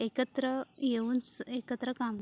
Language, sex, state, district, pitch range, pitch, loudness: Marathi, female, Maharashtra, Sindhudurg, 240-260 Hz, 250 Hz, -34 LUFS